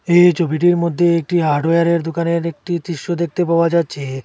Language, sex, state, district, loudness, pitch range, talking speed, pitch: Bengali, male, Assam, Hailakandi, -17 LUFS, 165-175 Hz, 170 wpm, 170 Hz